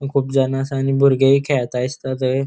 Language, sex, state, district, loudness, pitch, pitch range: Konkani, male, Goa, North and South Goa, -18 LUFS, 135 Hz, 130-140 Hz